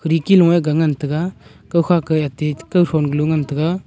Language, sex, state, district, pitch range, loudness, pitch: Wancho, male, Arunachal Pradesh, Longding, 150-175 Hz, -17 LUFS, 160 Hz